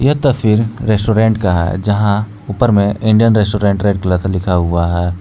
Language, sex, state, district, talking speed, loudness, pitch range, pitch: Hindi, male, Jharkhand, Palamu, 185 wpm, -14 LUFS, 95-110 Hz, 105 Hz